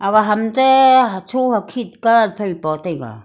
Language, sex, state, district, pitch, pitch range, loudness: Wancho, female, Arunachal Pradesh, Longding, 215 Hz, 190-245 Hz, -15 LUFS